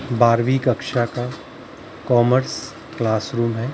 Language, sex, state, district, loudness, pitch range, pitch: Hindi, male, Maharashtra, Mumbai Suburban, -20 LUFS, 115-130 Hz, 120 Hz